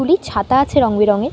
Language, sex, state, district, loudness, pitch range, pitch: Bengali, female, West Bengal, North 24 Parganas, -15 LUFS, 210-280 Hz, 255 Hz